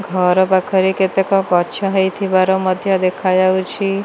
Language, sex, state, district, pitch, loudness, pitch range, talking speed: Odia, female, Odisha, Malkangiri, 190 Hz, -15 LUFS, 185-195 Hz, 105 wpm